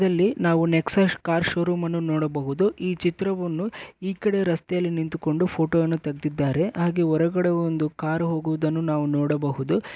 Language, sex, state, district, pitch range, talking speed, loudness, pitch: Kannada, male, Karnataka, Bellary, 155-180 Hz, 115 wpm, -24 LUFS, 165 Hz